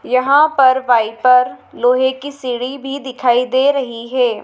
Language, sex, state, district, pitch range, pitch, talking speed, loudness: Hindi, female, Madhya Pradesh, Dhar, 245-270 Hz, 255 Hz, 150 wpm, -15 LUFS